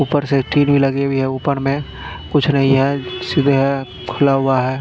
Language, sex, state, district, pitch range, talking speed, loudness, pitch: Hindi, male, Punjab, Fazilka, 135-140 Hz, 175 wpm, -17 LUFS, 135 Hz